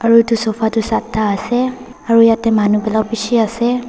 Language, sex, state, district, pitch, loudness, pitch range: Nagamese, female, Nagaland, Dimapur, 225 Hz, -15 LUFS, 220-235 Hz